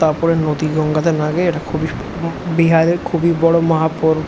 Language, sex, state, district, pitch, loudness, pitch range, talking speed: Bengali, male, West Bengal, Jhargram, 160 Hz, -16 LUFS, 155-165 Hz, 210 wpm